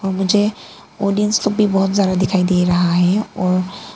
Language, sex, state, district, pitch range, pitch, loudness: Hindi, female, Arunachal Pradesh, Papum Pare, 185-205 Hz, 195 Hz, -17 LUFS